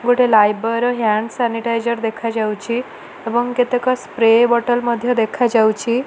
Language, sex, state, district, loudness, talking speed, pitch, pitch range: Odia, female, Odisha, Malkangiri, -17 LUFS, 120 wpm, 235 Hz, 225-245 Hz